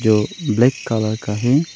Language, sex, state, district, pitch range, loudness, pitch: Hindi, male, Arunachal Pradesh, Longding, 110-135 Hz, -18 LUFS, 115 Hz